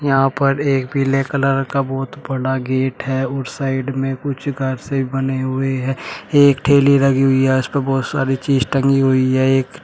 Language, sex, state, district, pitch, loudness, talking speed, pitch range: Hindi, male, Uttar Pradesh, Shamli, 135 Hz, -17 LUFS, 200 wpm, 130-140 Hz